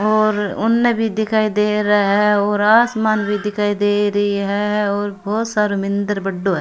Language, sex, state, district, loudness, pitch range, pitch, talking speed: Rajasthani, female, Rajasthan, Churu, -17 LUFS, 205-215 Hz, 205 Hz, 175 wpm